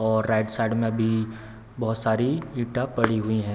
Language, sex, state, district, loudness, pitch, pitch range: Hindi, male, Bihar, Samastipur, -25 LUFS, 110 Hz, 110-115 Hz